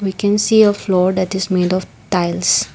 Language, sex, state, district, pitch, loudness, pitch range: English, female, Assam, Kamrup Metropolitan, 185 Hz, -16 LUFS, 180-205 Hz